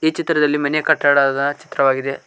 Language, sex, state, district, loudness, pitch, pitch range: Kannada, male, Karnataka, Koppal, -17 LUFS, 145 Hz, 140-155 Hz